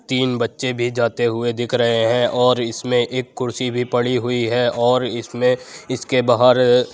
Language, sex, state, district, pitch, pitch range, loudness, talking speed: Hindi, male, Uttar Pradesh, Jyotiba Phule Nagar, 125 Hz, 120-125 Hz, -18 LUFS, 180 wpm